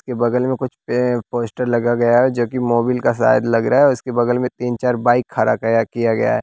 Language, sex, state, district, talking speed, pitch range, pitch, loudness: Hindi, male, Bihar, West Champaran, 260 wpm, 120-125 Hz, 120 Hz, -17 LUFS